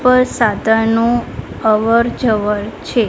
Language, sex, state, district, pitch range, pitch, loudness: Gujarati, female, Gujarat, Gandhinagar, 220-240 Hz, 230 Hz, -15 LUFS